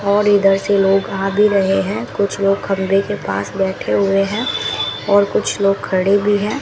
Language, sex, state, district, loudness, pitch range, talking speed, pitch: Hindi, female, Rajasthan, Bikaner, -16 LUFS, 195-205 Hz, 200 wpm, 200 Hz